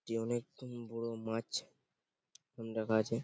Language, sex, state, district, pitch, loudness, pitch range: Bengali, male, West Bengal, Paschim Medinipur, 115 Hz, -39 LUFS, 115-120 Hz